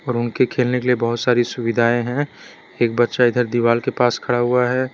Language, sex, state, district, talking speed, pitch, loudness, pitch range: Hindi, male, Gujarat, Valsad, 220 wpm, 120 Hz, -19 LUFS, 120-125 Hz